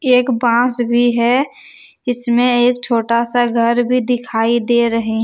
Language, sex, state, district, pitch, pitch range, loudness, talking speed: Hindi, female, Jharkhand, Deoghar, 240 Hz, 235-245 Hz, -15 LUFS, 150 wpm